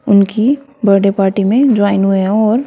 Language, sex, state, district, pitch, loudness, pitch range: Hindi, female, Haryana, Rohtak, 205 Hz, -12 LUFS, 195-240 Hz